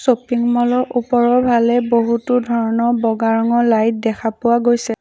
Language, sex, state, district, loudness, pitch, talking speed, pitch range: Assamese, female, Assam, Sonitpur, -16 LUFS, 235 Hz, 155 wpm, 230-245 Hz